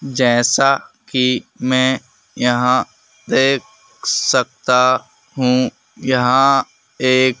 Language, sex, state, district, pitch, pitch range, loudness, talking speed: Hindi, male, Madhya Pradesh, Bhopal, 130 Hz, 125-135 Hz, -16 LUFS, 75 wpm